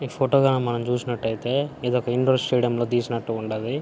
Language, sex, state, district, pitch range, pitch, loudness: Telugu, male, Andhra Pradesh, Anantapur, 120-130 Hz, 125 Hz, -23 LUFS